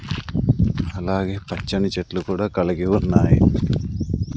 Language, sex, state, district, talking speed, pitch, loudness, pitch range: Telugu, male, Andhra Pradesh, Sri Satya Sai, 80 wpm, 95 Hz, -21 LUFS, 90-100 Hz